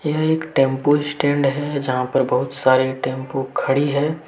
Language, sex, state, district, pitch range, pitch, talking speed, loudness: Hindi, male, Jharkhand, Deoghar, 130-145 Hz, 140 Hz, 170 wpm, -19 LUFS